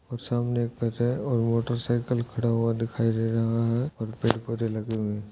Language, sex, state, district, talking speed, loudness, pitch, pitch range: Hindi, male, Chhattisgarh, Jashpur, 215 wpm, -27 LUFS, 115 Hz, 115-120 Hz